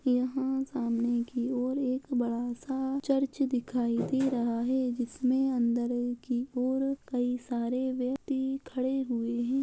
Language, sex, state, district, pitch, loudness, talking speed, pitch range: Hindi, female, Bihar, Muzaffarpur, 255 Hz, -31 LUFS, 135 wpm, 240-265 Hz